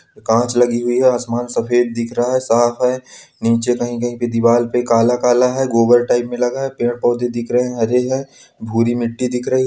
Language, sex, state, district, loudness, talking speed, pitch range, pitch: Hindi, male, Uttarakhand, Uttarkashi, -17 LUFS, 230 wpm, 120-125 Hz, 120 Hz